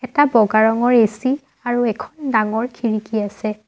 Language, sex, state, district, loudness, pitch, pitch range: Assamese, female, Assam, Sonitpur, -18 LUFS, 230 Hz, 215-255 Hz